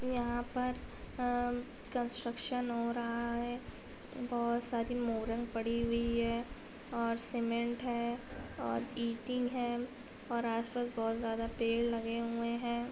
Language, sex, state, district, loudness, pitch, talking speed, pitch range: Hindi, female, Bihar, Gaya, -36 LUFS, 235 Hz, 125 wpm, 235-245 Hz